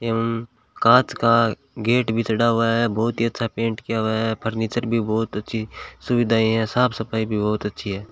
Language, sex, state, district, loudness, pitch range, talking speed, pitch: Hindi, male, Rajasthan, Bikaner, -21 LUFS, 110-115 Hz, 200 wpm, 115 Hz